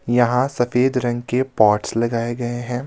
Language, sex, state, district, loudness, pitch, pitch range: Hindi, male, Himachal Pradesh, Shimla, -19 LUFS, 120 Hz, 120-125 Hz